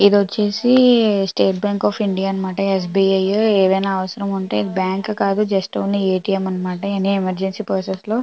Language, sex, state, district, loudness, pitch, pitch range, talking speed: Telugu, female, Andhra Pradesh, Visakhapatnam, -18 LUFS, 195 Hz, 190-205 Hz, 175 wpm